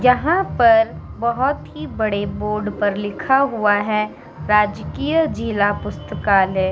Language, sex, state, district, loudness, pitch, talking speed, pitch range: Hindi, female, Uttar Pradesh, Muzaffarnagar, -19 LUFS, 210 Hz, 115 wpm, 205-265 Hz